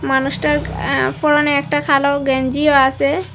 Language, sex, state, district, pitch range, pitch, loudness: Bengali, female, Assam, Hailakandi, 235-295 Hz, 280 Hz, -16 LUFS